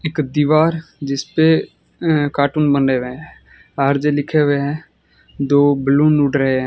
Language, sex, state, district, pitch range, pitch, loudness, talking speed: Hindi, male, Rajasthan, Bikaner, 140-155 Hz, 145 Hz, -16 LUFS, 160 wpm